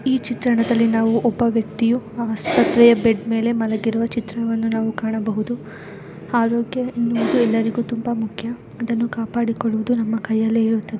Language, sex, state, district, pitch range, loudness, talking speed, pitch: Kannada, female, Karnataka, Dakshina Kannada, 225-235 Hz, -20 LUFS, 120 wpm, 230 Hz